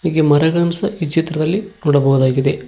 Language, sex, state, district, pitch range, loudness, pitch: Kannada, male, Karnataka, Koppal, 145-170 Hz, -16 LUFS, 160 Hz